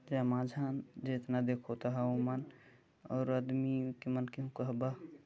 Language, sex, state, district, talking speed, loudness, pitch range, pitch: Chhattisgarhi, male, Chhattisgarh, Jashpur, 150 wpm, -37 LUFS, 125-130 Hz, 130 Hz